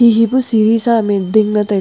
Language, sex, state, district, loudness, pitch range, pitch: Wancho, female, Arunachal Pradesh, Longding, -13 LUFS, 210-230 Hz, 220 Hz